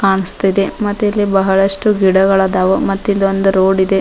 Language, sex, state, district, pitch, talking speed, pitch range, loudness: Kannada, female, Karnataka, Dharwad, 195 Hz, 120 wpm, 190-195 Hz, -13 LUFS